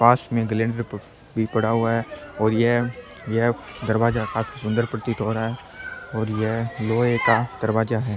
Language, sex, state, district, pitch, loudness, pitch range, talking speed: Rajasthani, male, Rajasthan, Churu, 115 Hz, -23 LUFS, 110-120 Hz, 160 wpm